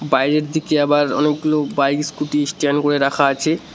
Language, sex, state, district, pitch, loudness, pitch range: Bengali, male, West Bengal, Cooch Behar, 145 Hz, -18 LUFS, 140-150 Hz